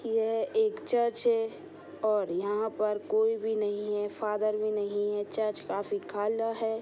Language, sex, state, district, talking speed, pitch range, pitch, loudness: Hindi, female, Bihar, Sitamarhi, 175 wpm, 205-225 Hz, 215 Hz, -30 LUFS